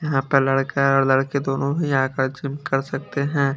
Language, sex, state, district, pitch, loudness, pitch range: Hindi, male, Bihar, Kaimur, 135 Hz, -21 LUFS, 135-140 Hz